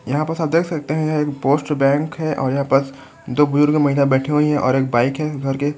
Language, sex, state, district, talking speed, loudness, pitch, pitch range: Hindi, male, Chhattisgarh, Korba, 250 wpm, -18 LUFS, 145 Hz, 135-155 Hz